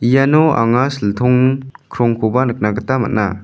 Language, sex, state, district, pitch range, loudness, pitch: Garo, male, Meghalaya, West Garo Hills, 110-130 Hz, -15 LUFS, 125 Hz